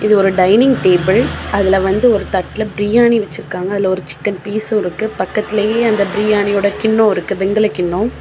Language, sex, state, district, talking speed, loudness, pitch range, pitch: Tamil, female, Tamil Nadu, Kanyakumari, 170 wpm, -14 LUFS, 190-215 Hz, 205 Hz